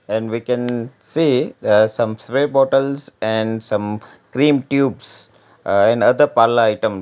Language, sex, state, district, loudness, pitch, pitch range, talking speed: English, male, Gujarat, Valsad, -17 LUFS, 115 Hz, 110-135 Hz, 145 wpm